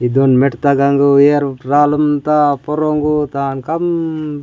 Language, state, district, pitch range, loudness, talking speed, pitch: Gondi, Chhattisgarh, Sukma, 140-150 Hz, -14 LUFS, 150 wpm, 145 Hz